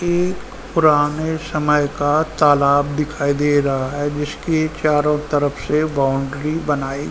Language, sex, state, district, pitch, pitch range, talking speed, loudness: Hindi, male, Uttar Pradesh, Ghazipur, 150 Hz, 145-155 Hz, 135 wpm, -18 LUFS